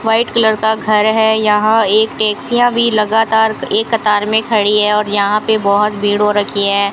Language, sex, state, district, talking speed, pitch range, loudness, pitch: Hindi, female, Rajasthan, Bikaner, 200 wpm, 210-220 Hz, -13 LUFS, 215 Hz